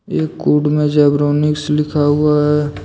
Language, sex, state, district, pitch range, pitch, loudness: Hindi, male, Jharkhand, Deoghar, 145-150 Hz, 150 Hz, -15 LUFS